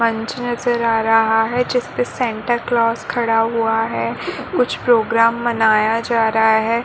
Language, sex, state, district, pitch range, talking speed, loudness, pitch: Hindi, female, Chhattisgarh, Bilaspur, 225-240 Hz, 140 wpm, -17 LUFS, 230 Hz